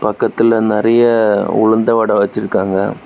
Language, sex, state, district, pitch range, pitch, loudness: Tamil, male, Tamil Nadu, Kanyakumari, 105-115 Hz, 110 Hz, -13 LUFS